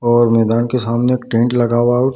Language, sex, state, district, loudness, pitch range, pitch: Hindi, male, Bihar, Darbhanga, -15 LUFS, 115-125 Hz, 120 Hz